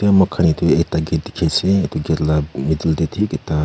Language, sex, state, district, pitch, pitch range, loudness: Nagamese, male, Nagaland, Kohima, 80 Hz, 75-95 Hz, -18 LUFS